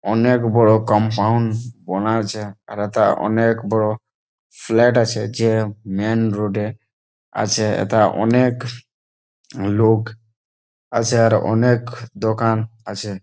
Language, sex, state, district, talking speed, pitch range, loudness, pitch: Bengali, male, West Bengal, Malda, 110 wpm, 105-115 Hz, -18 LUFS, 110 Hz